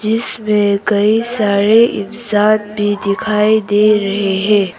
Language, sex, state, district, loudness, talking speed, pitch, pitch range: Hindi, female, Arunachal Pradesh, Papum Pare, -14 LUFS, 115 wpm, 210 Hz, 205-215 Hz